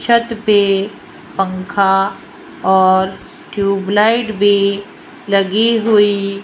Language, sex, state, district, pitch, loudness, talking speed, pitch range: Hindi, female, Rajasthan, Jaipur, 200 Hz, -14 LUFS, 85 wpm, 195-220 Hz